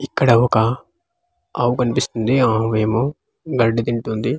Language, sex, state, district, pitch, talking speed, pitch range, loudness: Telugu, male, Andhra Pradesh, Manyam, 120 Hz, 110 wpm, 115-135 Hz, -18 LUFS